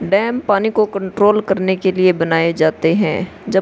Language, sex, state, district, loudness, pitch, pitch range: Hindi, female, Uttar Pradesh, Hamirpur, -16 LUFS, 190 Hz, 180-210 Hz